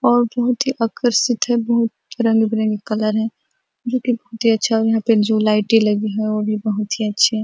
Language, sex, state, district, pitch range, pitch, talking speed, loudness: Hindi, female, Chhattisgarh, Bastar, 215-240 Hz, 225 Hz, 220 wpm, -18 LUFS